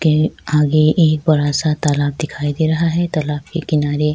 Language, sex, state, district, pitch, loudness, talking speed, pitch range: Urdu, female, Bihar, Saharsa, 155 Hz, -16 LUFS, 190 wpm, 145-160 Hz